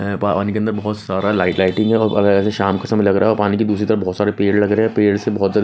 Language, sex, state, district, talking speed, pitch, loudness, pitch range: Hindi, male, Odisha, Nuapada, 340 wpm, 105 Hz, -17 LUFS, 100-105 Hz